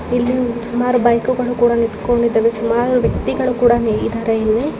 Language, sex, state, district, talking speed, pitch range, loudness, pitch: Kannada, female, Karnataka, Dakshina Kannada, 135 wpm, 230-245 Hz, -16 LUFS, 240 Hz